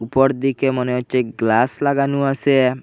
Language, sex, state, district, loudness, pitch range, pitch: Bengali, male, Assam, Hailakandi, -18 LUFS, 125-135 Hz, 135 Hz